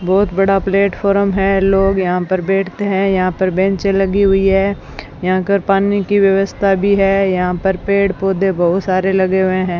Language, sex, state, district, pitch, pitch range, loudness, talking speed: Hindi, female, Rajasthan, Bikaner, 195 Hz, 185-195 Hz, -15 LUFS, 190 wpm